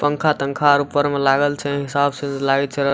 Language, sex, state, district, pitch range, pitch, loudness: Maithili, male, Bihar, Supaul, 140-145 Hz, 140 Hz, -19 LUFS